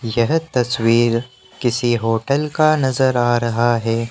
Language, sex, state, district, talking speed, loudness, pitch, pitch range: Hindi, male, Rajasthan, Jaipur, 130 wpm, -18 LUFS, 120 Hz, 115-130 Hz